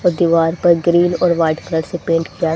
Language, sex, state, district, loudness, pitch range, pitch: Hindi, female, Haryana, Charkhi Dadri, -15 LUFS, 165-175 Hz, 170 Hz